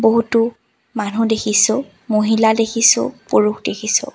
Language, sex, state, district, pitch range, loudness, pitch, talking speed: Assamese, female, Assam, Sonitpur, 215-230 Hz, -16 LUFS, 225 Hz, 100 wpm